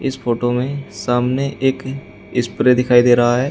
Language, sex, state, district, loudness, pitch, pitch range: Hindi, male, Uttar Pradesh, Shamli, -17 LUFS, 125 Hz, 120-135 Hz